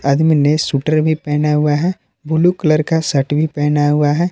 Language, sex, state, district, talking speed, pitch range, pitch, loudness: Hindi, male, Jharkhand, Palamu, 210 wpm, 145-160 Hz, 150 Hz, -15 LUFS